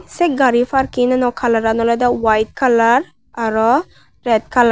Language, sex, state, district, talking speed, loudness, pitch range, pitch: Chakma, female, Tripura, West Tripura, 125 wpm, -15 LUFS, 230-255 Hz, 240 Hz